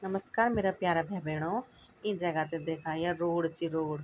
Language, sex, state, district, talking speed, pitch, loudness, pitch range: Garhwali, female, Uttarakhand, Tehri Garhwal, 210 wpm, 170 Hz, -32 LUFS, 160-195 Hz